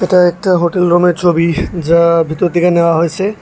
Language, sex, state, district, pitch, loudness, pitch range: Bengali, male, Tripura, West Tripura, 175 Hz, -12 LUFS, 170-180 Hz